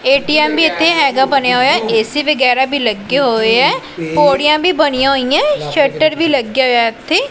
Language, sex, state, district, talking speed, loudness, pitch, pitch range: Punjabi, female, Punjab, Pathankot, 165 wpm, -12 LUFS, 275 Hz, 250-300 Hz